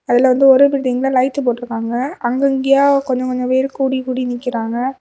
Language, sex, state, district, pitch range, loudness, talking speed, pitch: Tamil, female, Tamil Nadu, Kanyakumari, 245-270 Hz, -16 LUFS, 170 wpm, 255 Hz